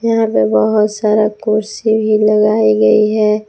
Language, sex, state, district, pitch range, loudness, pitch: Hindi, female, Jharkhand, Palamu, 210-215 Hz, -13 LUFS, 215 Hz